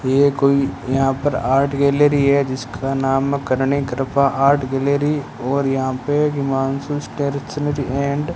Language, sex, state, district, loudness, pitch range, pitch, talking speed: Hindi, male, Rajasthan, Bikaner, -19 LUFS, 135-140 Hz, 140 Hz, 145 wpm